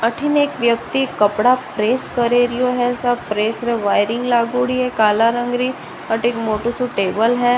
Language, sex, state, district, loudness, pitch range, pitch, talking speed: Rajasthani, female, Rajasthan, Nagaur, -18 LUFS, 225-250 Hz, 240 Hz, 180 wpm